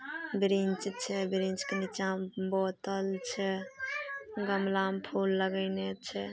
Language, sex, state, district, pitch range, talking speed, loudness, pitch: Maithili, female, Bihar, Samastipur, 190-200 Hz, 125 wpm, -33 LUFS, 195 Hz